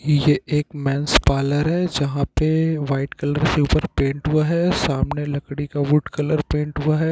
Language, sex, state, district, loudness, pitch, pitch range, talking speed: Hindi, male, Bihar, Jahanabad, -20 LUFS, 145 Hz, 140-155 Hz, 175 wpm